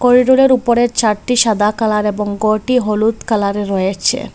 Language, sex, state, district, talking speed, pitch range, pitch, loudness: Bengali, female, Assam, Hailakandi, 150 wpm, 210-245 Hz, 215 Hz, -14 LUFS